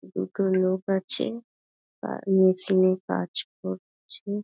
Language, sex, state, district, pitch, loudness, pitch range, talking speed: Bengali, female, West Bengal, Dakshin Dinajpur, 185 Hz, -26 LUFS, 185-195 Hz, 110 wpm